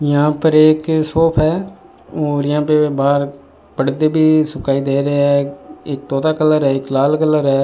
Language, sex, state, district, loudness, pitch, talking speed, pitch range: Hindi, male, Rajasthan, Bikaner, -15 LUFS, 150 Hz, 180 wpm, 140-155 Hz